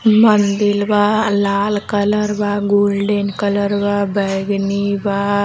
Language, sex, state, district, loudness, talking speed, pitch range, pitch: Hindi, female, Uttar Pradesh, Gorakhpur, -16 LUFS, 110 wpm, 200-205 Hz, 205 Hz